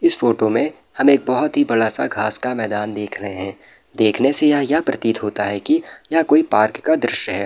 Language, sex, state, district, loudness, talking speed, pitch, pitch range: Hindi, male, Bihar, Madhepura, -18 LUFS, 215 wpm, 115 Hz, 105-145 Hz